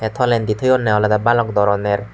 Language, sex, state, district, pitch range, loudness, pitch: Chakma, male, Tripura, West Tripura, 105-120 Hz, -16 LUFS, 105 Hz